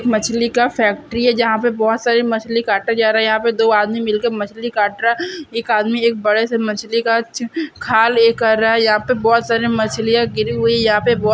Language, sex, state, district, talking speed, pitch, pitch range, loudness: Hindi, female, Bihar, Purnia, 235 wpm, 230 Hz, 220-235 Hz, -16 LUFS